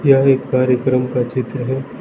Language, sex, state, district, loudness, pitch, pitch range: Hindi, male, Arunachal Pradesh, Lower Dibang Valley, -17 LUFS, 130 Hz, 125-135 Hz